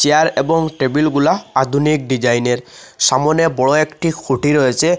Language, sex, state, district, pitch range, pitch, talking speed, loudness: Bengali, male, Assam, Hailakandi, 130-155 Hz, 145 Hz, 145 wpm, -15 LUFS